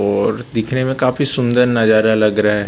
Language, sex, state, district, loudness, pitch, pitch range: Hindi, male, Chhattisgarh, Raipur, -15 LUFS, 115 Hz, 105-130 Hz